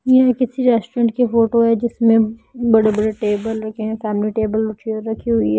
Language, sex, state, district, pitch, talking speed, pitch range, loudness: Hindi, female, Bihar, Patna, 225 Hz, 195 wpm, 215-235 Hz, -17 LUFS